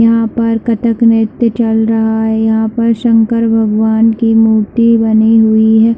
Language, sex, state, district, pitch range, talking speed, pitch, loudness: Hindi, female, Chhattisgarh, Bilaspur, 220-230 Hz, 160 wpm, 225 Hz, -11 LUFS